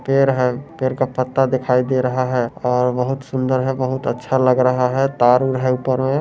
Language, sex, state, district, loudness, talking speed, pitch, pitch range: Hindi, male, Bihar, Muzaffarpur, -18 LUFS, 230 wpm, 130 Hz, 125-130 Hz